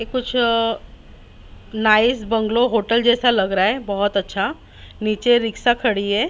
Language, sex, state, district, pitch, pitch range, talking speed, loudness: Hindi, female, Maharashtra, Mumbai Suburban, 220 Hz, 200-240 Hz, 145 wpm, -18 LUFS